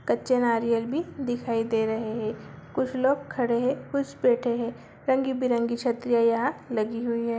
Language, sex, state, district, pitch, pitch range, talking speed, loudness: Hindi, female, Bihar, Begusarai, 235 Hz, 230-260 Hz, 170 wpm, -26 LUFS